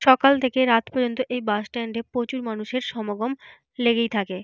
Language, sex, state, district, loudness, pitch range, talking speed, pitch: Bengali, female, Jharkhand, Jamtara, -23 LUFS, 220-255 Hz, 175 wpm, 235 Hz